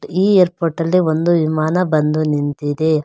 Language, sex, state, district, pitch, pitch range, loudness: Kannada, female, Karnataka, Bangalore, 160 Hz, 155-175 Hz, -16 LUFS